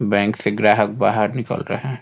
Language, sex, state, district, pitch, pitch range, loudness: Hindi, male, Bihar, Saran, 105 Hz, 100-120 Hz, -19 LUFS